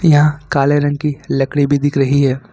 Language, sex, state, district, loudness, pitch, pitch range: Hindi, male, Jharkhand, Ranchi, -15 LUFS, 145 Hz, 140-150 Hz